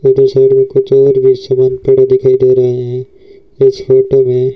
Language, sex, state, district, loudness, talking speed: Hindi, male, Rajasthan, Bikaner, -10 LUFS, 200 wpm